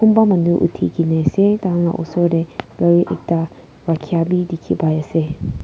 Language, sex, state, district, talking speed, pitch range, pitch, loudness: Nagamese, female, Nagaland, Kohima, 140 wpm, 165-175 Hz, 170 Hz, -17 LUFS